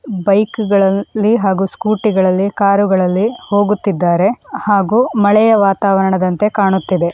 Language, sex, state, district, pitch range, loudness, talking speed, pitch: Kannada, female, Karnataka, Dakshina Kannada, 190-215 Hz, -14 LUFS, 75 wpm, 200 Hz